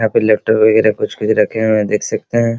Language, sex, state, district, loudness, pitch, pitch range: Hindi, male, Bihar, Araria, -14 LUFS, 110 Hz, 110-115 Hz